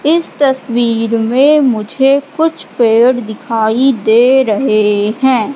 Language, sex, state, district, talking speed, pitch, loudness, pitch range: Hindi, female, Madhya Pradesh, Katni, 110 wpm, 245 Hz, -12 LUFS, 225-275 Hz